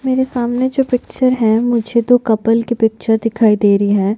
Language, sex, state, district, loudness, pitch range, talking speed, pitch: Hindi, female, Chhattisgarh, Jashpur, -15 LUFS, 220-250 Hz, 200 wpm, 235 Hz